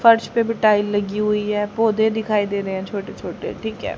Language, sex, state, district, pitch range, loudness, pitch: Hindi, female, Haryana, Rohtak, 205-220 Hz, -20 LUFS, 210 Hz